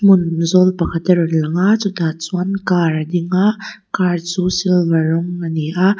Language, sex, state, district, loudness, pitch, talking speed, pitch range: Mizo, female, Mizoram, Aizawl, -16 LUFS, 175 Hz, 190 wpm, 165-185 Hz